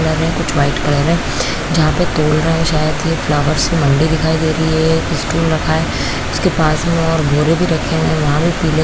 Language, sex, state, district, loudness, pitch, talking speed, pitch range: Hindi, female, Chhattisgarh, Bastar, -15 LUFS, 160 Hz, 250 wpm, 155-165 Hz